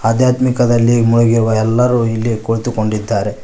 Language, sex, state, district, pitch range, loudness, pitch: Kannada, male, Karnataka, Koppal, 110-120 Hz, -14 LUFS, 115 Hz